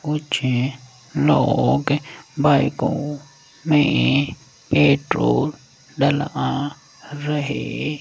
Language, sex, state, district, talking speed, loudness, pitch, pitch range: Hindi, male, Rajasthan, Jaipur, 60 wpm, -20 LUFS, 145 Hz, 135-150 Hz